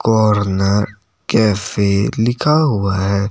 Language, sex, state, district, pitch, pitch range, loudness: Hindi, male, Himachal Pradesh, Shimla, 100 Hz, 100-110 Hz, -16 LUFS